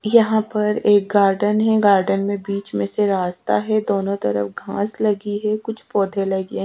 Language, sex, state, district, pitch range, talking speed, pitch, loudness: Hindi, female, Haryana, Charkhi Dadri, 195-215 Hz, 180 wpm, 200 Hz, -19 LUFS